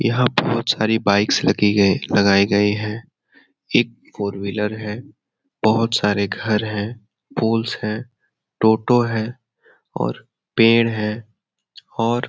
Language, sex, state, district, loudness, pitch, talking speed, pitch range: Hindi, male, Bihar, Jamui, -19 LUFS, 110 Hz, 125 wpm, 105-115 Hz